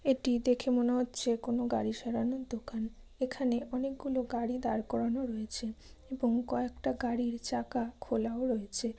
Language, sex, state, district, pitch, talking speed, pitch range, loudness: Bengali, female, West Bengal, Jalpaiguri, 240 Hz, 135 wpm, 235-255 Hz, -34 LUFS